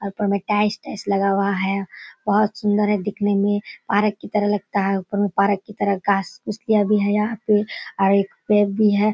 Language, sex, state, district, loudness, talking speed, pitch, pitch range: Hindi, female, Bihar, Kishanganj, -21 LUFS, 210 wpm, 205 Hz, 200-210 Hz